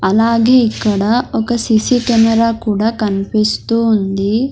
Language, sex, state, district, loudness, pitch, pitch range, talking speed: Telugu, female, Andhra Pradesh, Sri Satya Sai, -14 LUFS, 225 Hz, 215-235 Hz, 105 wpm